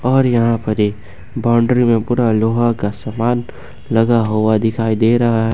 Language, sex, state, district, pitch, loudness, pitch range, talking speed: Hindi, male, Jharkhand, Ranchi, 115 Hz, -16 LUFS, 110-120 Hz, 160 wpm